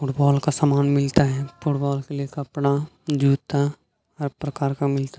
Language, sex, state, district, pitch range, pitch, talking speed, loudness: Hindi, male, Chhattisgarh, Bilaspur, 140-145 Hz, 140 Hz, 160 wpm, -23 LUFS